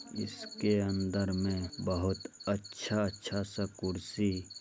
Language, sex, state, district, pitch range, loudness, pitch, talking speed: Hindi, male, Bihar, Begusarai, 95-105 Hz, -35 LUFS, 100 Hz, 105 wpm